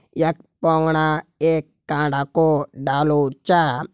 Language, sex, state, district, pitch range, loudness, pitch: Garhwali, male, Uttarakhand, Uttarkashi, 145-160 Hz, -20 LUFS, 155 Hz